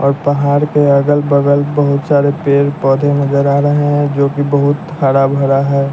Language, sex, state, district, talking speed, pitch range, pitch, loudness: Hindi, male, Bihar, West Champaran, 190 wpm, 140-145 Hz, 140 Hz, -12 LUFS